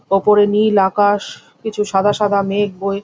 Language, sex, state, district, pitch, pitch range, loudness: Bengali, female, West Bengal, Jhargram, 205 Hz, 195-205 Hz, -15 LUFS